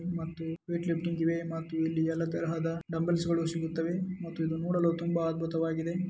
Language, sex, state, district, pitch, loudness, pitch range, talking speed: Kannada, male, Karnataka, Dharwad, 165 Hz, -32 LUFS, 165-170 Hz, 145 wpm